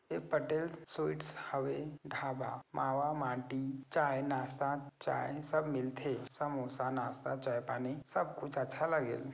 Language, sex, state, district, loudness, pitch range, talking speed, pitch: Chhattisgarhi, male, Chhattisgarh, Sarguja, -38 LUFS, 130-150 Hz, 130 wpm, 135 Hz